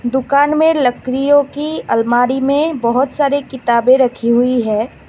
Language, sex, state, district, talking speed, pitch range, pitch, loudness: Hindi, female, Assam, Kamrup Metropolitan, 140 wpm, 245-285 Hz, 260 Hz, -14 LUFS